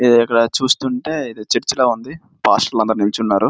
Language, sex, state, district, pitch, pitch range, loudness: Telugu, male, Andhra Pradesh, Srikakulam, 120 Hz, 110-130 Hz, -17 LUFS